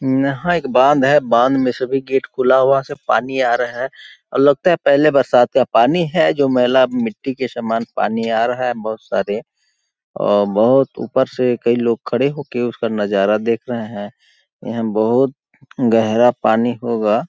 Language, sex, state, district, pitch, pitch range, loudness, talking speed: Hindi, male, Chhattisgarh, Balrampur, 125 Hz, 115-135 Hz, -16 LUFS, 175 wpm